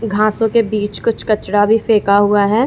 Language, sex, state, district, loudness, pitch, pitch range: Hindi, female, Jharkhand, Ranchi, -14 LUFS, 215 Hz, 205-225 Hz